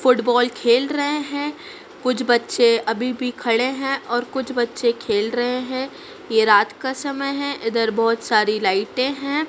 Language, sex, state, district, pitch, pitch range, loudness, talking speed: Hindi, female, Madhya Pradesh, Dhar, 250 Hz, 230-275 Hz, -20 LUFS, 165 wpm